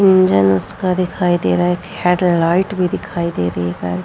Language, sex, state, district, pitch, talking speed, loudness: Hindi, female, Bihar, Vaishali, 175 Hz, 190 wpm, -16 LUFS